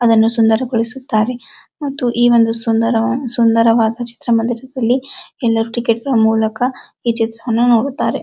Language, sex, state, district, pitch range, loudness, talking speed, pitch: Kannada, male, Karnataka, Dharwad, 225-250 Hz, -15 LUFS, 115 wpm, 235 Hz